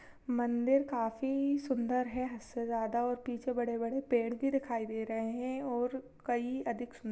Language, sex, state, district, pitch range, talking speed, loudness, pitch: Hindi, female, Chhattisgarh, Jashpur, 235-260 Hz, 175 wpm, -35 LUFS, 245 Hz